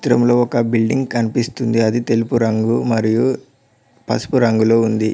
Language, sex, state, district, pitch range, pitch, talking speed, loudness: Telugu, male, Telangana, Mahabubabad, 115-120 Hz, 115 Hz, 140 wpm, -16 LUFS